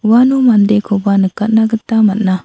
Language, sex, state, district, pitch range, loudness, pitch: Garo, female, Meghalaya, South Garo Hills, 200-225 Hz, -12 LUFS, 215 Hz